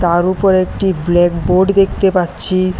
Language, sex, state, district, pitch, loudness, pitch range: Bengali, male, Tripura, West Tripura, 185 Hz, -14 LUFS, 175-190 Hz